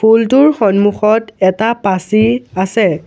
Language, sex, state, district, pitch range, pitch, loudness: Assamese, male, Assam, Sonitpur, 195-225 Hz, 215 Hz, -12 LUFS